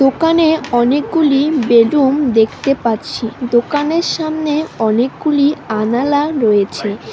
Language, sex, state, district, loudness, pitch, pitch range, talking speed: Bengali, female, West Bengal, Alipurduar, -14 LUFS, 275 Hz, 230-300 Hz, 85 wpm